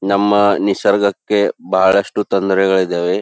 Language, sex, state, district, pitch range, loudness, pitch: Kannada, male, Karnataka, Belgaum, 95-100 Hz, -15 LUFS, 100 Hz